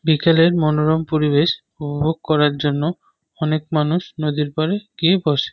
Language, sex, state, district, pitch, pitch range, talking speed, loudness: Bengali, male, West Bengal, North 24 Parganas, 155 Hz, 150-165 Hz, 130 wpm, -19 LUFS